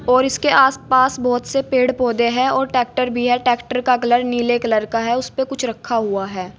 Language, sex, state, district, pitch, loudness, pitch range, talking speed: Hindi, female, Uttar Pradesh, Saharanpur, 245 Hz, -18 LUFS, 235-255 Hz, 220 wpm